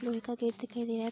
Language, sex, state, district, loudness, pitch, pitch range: Hindi, female, Bihar, Darbhanga, -35 LUFS, 235 Hz, 230-240 Hz